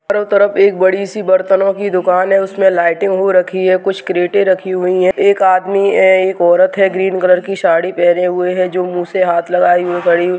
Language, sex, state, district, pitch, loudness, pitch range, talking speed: Hindi, female, Uttarakhand, Tehri Garhwal, 185 Hz, -12 LUFS, 180-195 Hz, 230 wpm